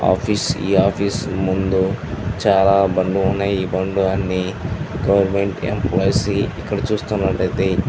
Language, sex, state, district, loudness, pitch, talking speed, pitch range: Telugu, male, Andhra Pradesh, Chittoor, -19 LUFS, 95 Hz, 100 wpm, 95-100 Hz